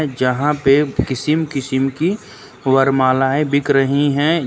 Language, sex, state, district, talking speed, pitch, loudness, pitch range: Hindi, male, Uttar Pradesh, Lucknow, 120 wpm, 135 Hz, -16 LUFS, 135-150 Hz